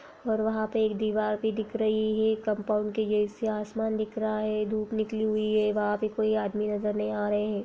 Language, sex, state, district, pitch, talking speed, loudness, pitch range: Hindi, female, Bihar, Lakhisarai, 215 Hz, 235 wpm, -28 LUFS, 210-220 Hz